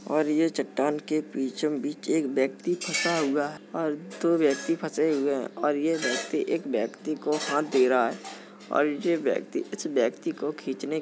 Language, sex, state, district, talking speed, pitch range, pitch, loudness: Hindi, male, Uttar Pradesh, Jalaun, 185 wpm, 140-160 Hz, 150 Hz, -27 LUFS